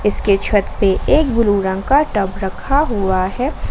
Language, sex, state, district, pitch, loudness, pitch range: Hindi, female, Jharkhand, Garhwa, 205 Hz, -16 LUFS, 190-255 Hz